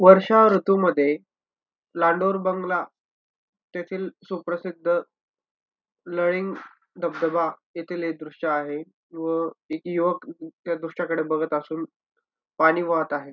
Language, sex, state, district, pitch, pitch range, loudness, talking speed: Marathi, male, Maharashtra, Dhule, 175 Hz, 165-190 Hz, -24 LUFS, 100 wpm